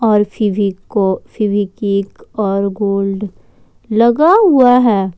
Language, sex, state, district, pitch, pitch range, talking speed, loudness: Hindi, female, Jharkhand, Ranchi, 205 Hz, 195-220 Hz, 95 wpm, -14 LUFS